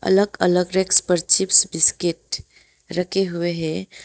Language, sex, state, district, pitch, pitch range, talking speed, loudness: Hindi, female, West Bengal, Alipurduar, 180 Hz, 170-190 Hz, 135 wpm, -18 LUFS